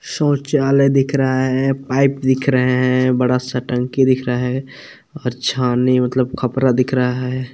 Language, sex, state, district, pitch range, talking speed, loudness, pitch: Hindi, male, Chhattisgarh, Balrampur, 125-135 Hz, 165 wpm, -17 LUFS, 130 Hz